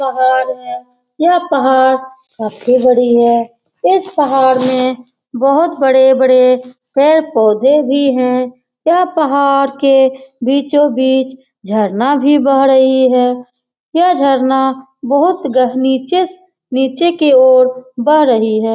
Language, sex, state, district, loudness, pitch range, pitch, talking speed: Hindi, female, Bihar, Lakhisarai, -12 LUFS, 255-280 Hz, 265 Hz, 115 wpm